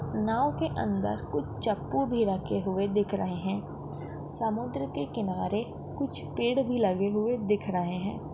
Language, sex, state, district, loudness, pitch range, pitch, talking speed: Hindi, female, Maharashtra, Dhule, -30 LUFS, 190-225 Hz, 205 Hz, 160 wpm